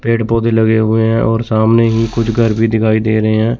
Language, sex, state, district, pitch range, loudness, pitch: Hindi, male, Chandigarh, Chandigarh, 110-115 Hz, -13 LUFS, 115 Hz